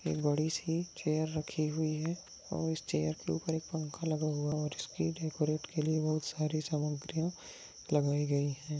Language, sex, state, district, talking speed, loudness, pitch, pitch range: Hindi, male, Maharashtra, Nagpur, 190 wpm, -35 LUFS, 155 Hz, 150-160 Hz